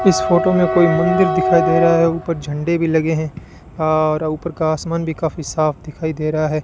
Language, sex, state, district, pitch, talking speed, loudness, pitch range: Hindi, male, Rajasthan, Bikaner, 160 Hz, 235 wpm, -17 LUFS, 155-165 Hz